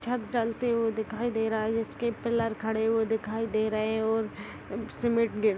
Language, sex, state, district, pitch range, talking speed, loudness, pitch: Hindi, female, Maharashtra, Aurangabad, 220-230 Hz, 180 wpm, -29 LUFS, 225 Hz